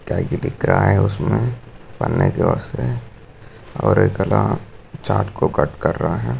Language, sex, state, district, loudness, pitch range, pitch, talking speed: Hindi, male, Maharashtra, Sindhudurg, -19 LUFS, 105-120 Hz, 115 Hz, 160 wpm